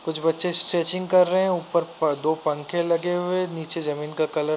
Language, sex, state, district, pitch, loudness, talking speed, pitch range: Hindi, male, Uttar Pradesh, Varanasi, 165 Hz, -20 LUFS, 225 wpm, 155-180 Hz